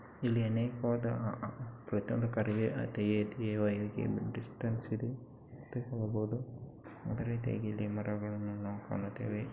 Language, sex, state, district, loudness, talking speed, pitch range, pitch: Kannada, male, Karnataka, Chamarajanagar, -37 LUFS, 70 wpm, 105-120 Hz, 115 Hz